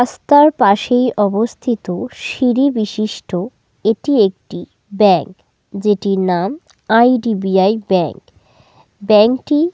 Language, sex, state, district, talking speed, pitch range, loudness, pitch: Bengali, female, West Bengal, North 24 Parganas, 90 wpm, 195-245 Hz, -15 LUFS, 215 Hz